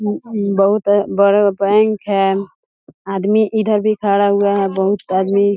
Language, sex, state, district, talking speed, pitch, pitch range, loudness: Hindi, female, Bihar, East Champaran, 130 wpm, 200 Hz, 195-210 Hz, -15 LUFS